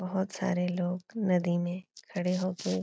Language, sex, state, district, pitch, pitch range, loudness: Hindi, female, Bihar, Supaul, 180 Hz, 180-185 Hz, -31 LUFS